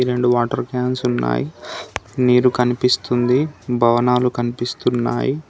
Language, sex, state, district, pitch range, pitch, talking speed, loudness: Telugu, male, Telangana, Komaram Bheem, 120-125 Hz, 125 Hz, 85 wpm, -19 LUFS